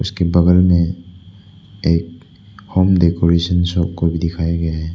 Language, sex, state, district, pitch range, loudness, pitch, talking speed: Hindi, male, Arunachal Pradesh, Lower Dibang Valley, 85-90 Hz, -16 LUFS, 85 Hz, 145 wpm